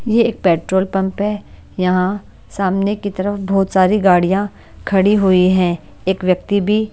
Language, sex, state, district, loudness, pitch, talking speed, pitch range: Hindi, male, Delhi, New Delhi, -16 LUFS, 195 Hz, 155 wpm, 185-205 Hz